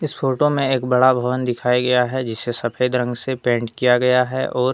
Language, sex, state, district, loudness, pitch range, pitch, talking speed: Hindi, male, Jharkhand, Deoghar, -19 LUFS, 125-130 Hz, 125 Hz, 230 wpm